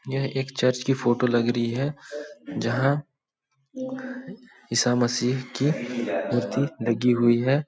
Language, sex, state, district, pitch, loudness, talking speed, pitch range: Hindi, male, Chhattisgarh, Balrampur, 130 Hz, -25 LUFS, 125 wpm, 120-145 Hz